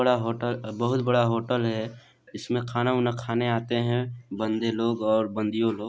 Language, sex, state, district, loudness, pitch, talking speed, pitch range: Hindi, male, Chhattisgarh, Sarguja, -26 LUFS, 115 Hz, 165 wpm, 110-120 Hz